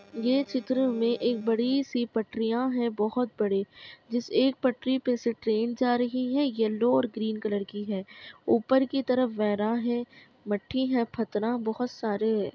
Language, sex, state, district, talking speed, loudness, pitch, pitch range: Hindi, female, Uttarakhand, Tehri Garhwal, 165 wpm, -28 LUFS, 240 Hz, 220-255 Hz